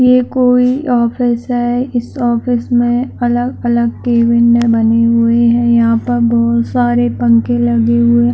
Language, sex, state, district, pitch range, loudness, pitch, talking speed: Hindi, female, Chhattisgarh, Bilaspur, 230-245 Hz, -12 LUFS, 235 Hz, 135 wpm